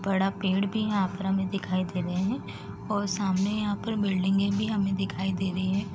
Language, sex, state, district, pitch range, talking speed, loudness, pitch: Hindi, female, Uttar Pradesh, Deoria, 190-205 Hz, 210 wpm, -28 LUFS, 195 Hz